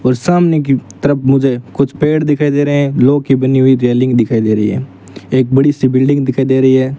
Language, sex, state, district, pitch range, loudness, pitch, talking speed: Hindi, male, Rajasthan, Bikaner, 130-145 Hz, -12 LUFS, 135 Hz, 240 wpm